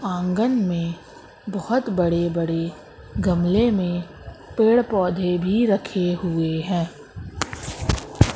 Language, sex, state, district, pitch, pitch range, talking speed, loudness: Hindi, female, Madhya Pradesh, Katni, 180 Hz, 170-200 Hz, 95 wpm, -22 LUFS